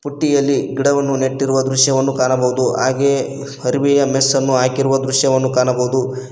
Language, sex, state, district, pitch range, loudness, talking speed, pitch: Kannada, male, Karnataka, Koppal, 130-140 Hz, -16 LUFS, 115 wpm, 135 Hz